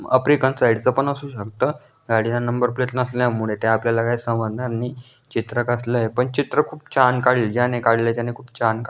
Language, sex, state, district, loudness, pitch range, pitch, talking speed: Marathi, male, Maharashtra, Dhule, -21 LUFS, 115-130 Hz, 120 Hz, 180 wpm